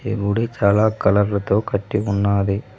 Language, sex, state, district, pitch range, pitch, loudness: Telugu, male, Telangana, Mahabubabad, 100-110 Hz, 100 Hz, -19 LUFS